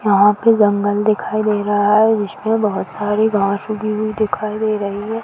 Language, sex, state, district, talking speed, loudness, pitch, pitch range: Hindi, female, Uttar Pradesh, Varanasi, 195 wpm, -17 LUFS, 210 Hz, 205-215 Hz